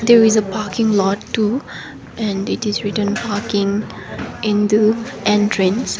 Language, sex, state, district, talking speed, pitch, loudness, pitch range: English, female, Sikkim, Gangtok, 140 wpm, 210 Hz, -17 LUFS, 205-220 Hz